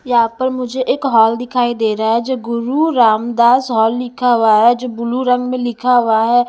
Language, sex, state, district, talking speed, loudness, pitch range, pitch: Hindi, female, Chhattisgarh, Raipur, 215 wpm, -14 LUFS, 230-250 Hz, 245 Hz